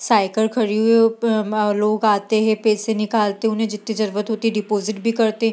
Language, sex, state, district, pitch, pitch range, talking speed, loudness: Hindi, female, Bihar, East Champaran, 220 Hz, 210-225 Hz, 185 wpm, -19 LUFS